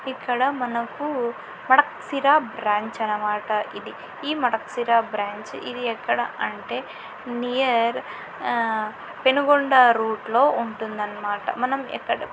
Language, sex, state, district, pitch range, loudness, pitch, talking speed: Telugu, female, Andhra Pradesh, Anantapur, 215-260 Hz, -23 LUFS, 235 Hz, 110 wpm